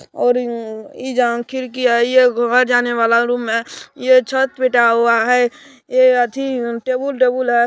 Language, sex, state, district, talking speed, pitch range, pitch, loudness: Maithili, male, Bihar, Supaul, 180 wpm, 235-255 Hz, 245 Hz, -16 LUFS